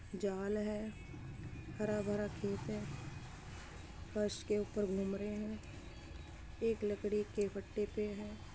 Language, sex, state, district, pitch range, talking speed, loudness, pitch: Hindi, female, Uttar Pradesh, Muzaffarnagar, 195-210 Hz, 125 wpm, -41 LUFS, 205 Hz